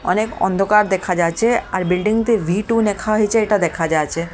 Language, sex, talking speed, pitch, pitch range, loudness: Bengali, female, 195 wpm, 205 Hz, 180-215 Hz, -17 LUFS